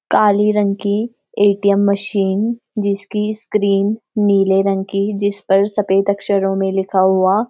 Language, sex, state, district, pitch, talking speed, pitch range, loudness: Hindi, female, Uttarakhand, Uttarkashi, 200 Hz, 145 wpm, 195-210 Hz, -16 LUFS